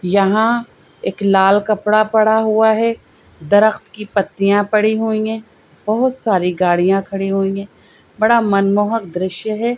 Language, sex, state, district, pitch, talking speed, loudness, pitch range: Hindi, female, Madhya Pradesh, Bhopal, 210 Hz, 140 wpm, -16 LUFS, 195-220 Hz